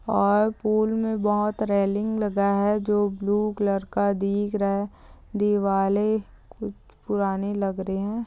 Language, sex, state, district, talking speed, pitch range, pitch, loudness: Hindi, female, Chhattisgarh, Balrampur, 145 wpm, 200-210 Hz, 205 Hz, -24 LUFS